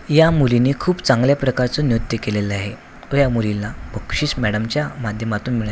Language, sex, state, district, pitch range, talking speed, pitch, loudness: Marathi, male, Maharashtra, Washim, 105-140 Hz, 145 wpm, 120 Hz, -19 LUFS